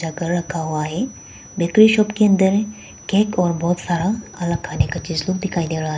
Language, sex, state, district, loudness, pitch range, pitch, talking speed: Hindi, female, Arunachal Pradesh, Papum Pare, -19 LUFS, 170-210 Hz, 175 Hz, 200 wpm